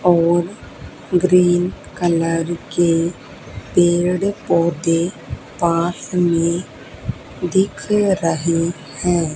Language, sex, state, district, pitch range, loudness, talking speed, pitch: Hindi, female, Haryana, Charkhi Dadri, 165-180 Hz, -18 LUFS, 70 wpm, 175 Hz